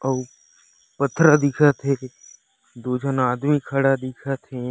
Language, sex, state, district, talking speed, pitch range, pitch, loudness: Chhattisgarhi, male, Chhattisgarh, Raigarh, 125 wpm, 130-140 Hz, 135 Hz, -21 LUFS